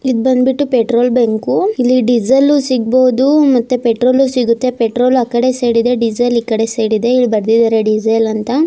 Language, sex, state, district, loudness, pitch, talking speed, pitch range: Kannada, female, Karnataka, Raichur, -13 LUFS, 245 Hz, 165 wpm, 230-255 Hz